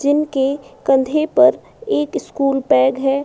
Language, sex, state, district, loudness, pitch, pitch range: Hindi, female, Uttar Pradesh, Budaun, -17 LUFS, 280 Hz, 270-305 Hz